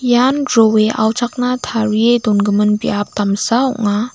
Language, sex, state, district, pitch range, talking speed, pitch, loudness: Garo, female, Meghalaya, West Garo Hills, 210-245 Hz, 115 wpm, 225 Hz, -15 LUFS